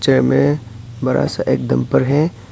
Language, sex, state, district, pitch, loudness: Hindi, male, Arunachal Pradesh, Papum Pare, 115 Hz, -17 LUFS